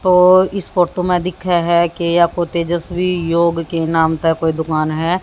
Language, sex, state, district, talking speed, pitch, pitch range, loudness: Hindi, female, Haryana, Jhajjar, 185 wpm, 170 Hz, 165-180 Hz, -16 LUFS